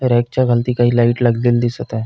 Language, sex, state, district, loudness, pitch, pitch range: Marathi, male, Maharashtra, Pune, -16 LUFS, 120 Hz, 120-125 Hz